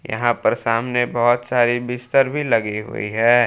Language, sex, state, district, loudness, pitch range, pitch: Hindi, male, Jharkhand, Palamu, -19 LUFS, 115-125 Hz, 120 Hz